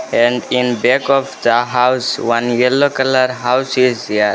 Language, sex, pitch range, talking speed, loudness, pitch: English, male, 120-130 Hz, 165 wpm, -15 LUFS, 125 Hz